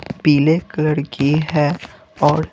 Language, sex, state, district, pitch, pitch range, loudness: Hindi, male, Bihar, Patna, 155 Hz, 145-160 Hz, -17 LUFS